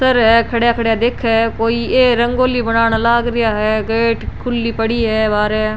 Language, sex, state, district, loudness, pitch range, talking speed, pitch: Rajasthani, female, Rajasthan, Churu, -15 LUFS, 225-235 Hz, 175 wpm, 230 Hz